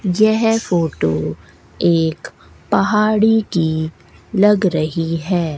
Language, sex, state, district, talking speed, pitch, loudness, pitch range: Hindi, female, Rajasthan, Bikaner, 85 wpm, 170 Hz, -17 LUFS, 155-210 Hz